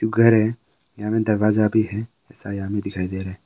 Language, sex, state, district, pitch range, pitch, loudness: Hindi, male, Arunachal Pradesh, Longding, 100-110 Hz, 110 Hz, -21 LUFS